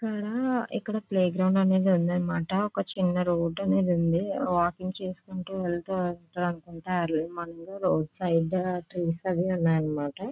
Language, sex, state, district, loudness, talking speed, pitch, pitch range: Telugu, female, Andhra Pradesh, Visakhapatnam, -27 LUFS, 120 wpm, 180 Hz, 170-190 Hz